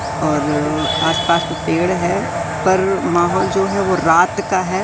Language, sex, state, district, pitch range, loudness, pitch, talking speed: Hindi, male, Madhya Pradesh, Katni, 170-180 Hz, -16 LUFS, 175 Hz, 150 wpm